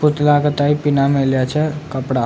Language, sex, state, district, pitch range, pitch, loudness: Rajasthani, male, Rajasthan, Nagaur, 135-150 Hz, 145 Hz, -16 LUFS